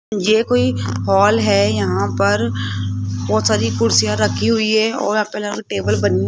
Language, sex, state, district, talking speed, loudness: Hindi, female, Rajasthan, Jaipur, 155 wpm, -17 LUFS